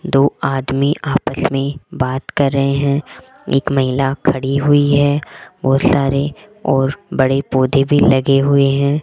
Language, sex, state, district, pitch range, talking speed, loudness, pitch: Hindi, female, Rajasthan, Jaipur, 135-145 Hz, 145 wpm, -16 LUFS, 140 Hz